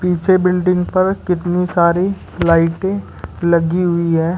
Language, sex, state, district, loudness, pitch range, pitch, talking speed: Hindi, male, Uttar Pradesh, Shamli, -16 LUFS, 170-185 Hz, 180 Hz, 125 wpm